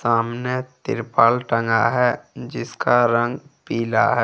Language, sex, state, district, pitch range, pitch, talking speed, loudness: Hindi, male, Jharkhand, Ranchi, 115-125 Hz, 120 Hz, 115 wpm, -20 LUFS